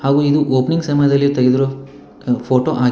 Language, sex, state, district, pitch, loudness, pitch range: Kannada, male, Karnataka, Bangalore, 135 Hz, -15 LUFS, 130-145 Hz